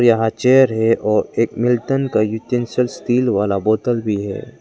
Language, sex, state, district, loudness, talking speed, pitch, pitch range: Hindi, male, Arunachal Pradesh, Lower Dibang Valley, -17 LUFS, 155 wpm, 115 Hz, 110-125 Hz